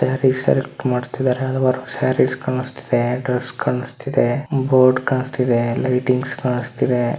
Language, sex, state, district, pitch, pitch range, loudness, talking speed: Kannada, male, Karnataka, Dharwad, 130 Hz, 125-130 Hz, -19 LUFS, 110 wpm